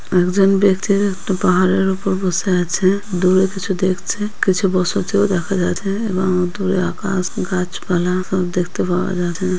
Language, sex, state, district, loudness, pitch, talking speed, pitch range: Bengali, female, West Bengal, Purulia, -18 LUFS, 185 Hz, 145 wpm, 180-195 Hz